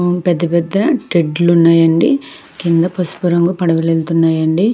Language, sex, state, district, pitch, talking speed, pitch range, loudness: Telugu, female, Andhra Pradesh, Krishna, 170 Hz, 115 wpm, 165-175 Hz, -14 LUFS